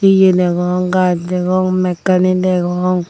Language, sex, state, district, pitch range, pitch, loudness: Chakma, female, Tripura, Unakoti, 180-185 Hz, 180 Hz, -14 LUFS